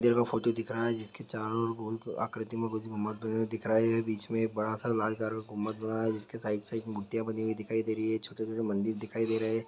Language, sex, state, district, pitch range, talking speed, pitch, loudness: Hindi, male, Chhattisgarh, Balrampur, 110-115 Hz, 275 wpm, 110 Hz, -33 LUFS